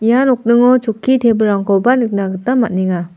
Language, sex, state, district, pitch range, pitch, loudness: Garo, female, Meghalaya, South Garo Hills, 200-250 Hz, 230 Hz, -14 LUFS